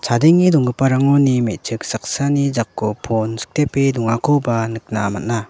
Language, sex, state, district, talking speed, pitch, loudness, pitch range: Garo, male, Meghalaya, West Garo Hills, 110 wpm, 120 Hz, -17 LUFS, 115-140 Hz